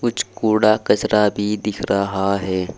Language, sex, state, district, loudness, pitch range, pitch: Hindi, male, Uttar Pradesh, Saharanpur, -19 LUFS, 100-110 Hz, 105 Hz